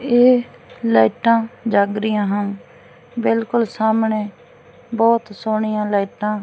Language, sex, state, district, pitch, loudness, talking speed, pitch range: Punjabi, female, Punjab, Fazilka, 220 Hz, -18 LUFS, 105 wpm, 205-230 Hz